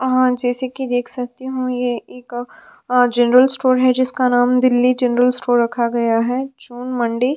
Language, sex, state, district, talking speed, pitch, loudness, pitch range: Hindi, female, Uttar Pradesh, Budaun, 170 wpm, 250 Hz, -17 LUFS, 245-255 Hz